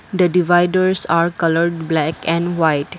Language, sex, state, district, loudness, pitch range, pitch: English, female, Assam, Kamrup Metropolitan, -17 LUFS, 165-180 Hz, 170 Hz